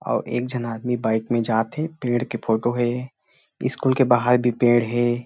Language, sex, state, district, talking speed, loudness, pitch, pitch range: Chhattisgarhi, male, Chhattisgarh, Rajnandgaon, 205 wpm, -22 LUFS, 120 Hz, 120-125 Hz